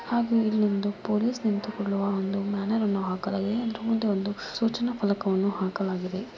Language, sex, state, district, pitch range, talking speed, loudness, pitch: Kannada, female, Karnataka, Mysore, 195-225 Hz, 130 wpm, -27 LUFS, 205 Hz